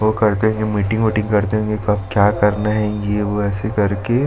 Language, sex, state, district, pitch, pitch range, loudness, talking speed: Hindi, male, Chhattisgarh, Sukma, 105 Hz, 105-110 Hz, -18 LUFS, 225 wpm